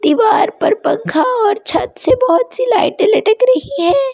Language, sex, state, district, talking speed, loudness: Hindi, female, Delhi, New Delhi, 220 wpm, -13 LUFS